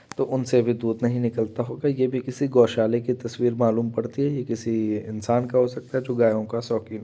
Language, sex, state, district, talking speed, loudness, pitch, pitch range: Hindi, male, Uttar Pradesh, Varanasi, 240 wpm, -24 LUFS, 120 Hz, 115-125 Hz